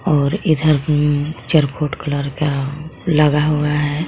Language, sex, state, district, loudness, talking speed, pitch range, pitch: Hindi, female, Jharkhand, Garhwa, -17 LUFS, 130 wpm, 145-155 Hz, 150 Hz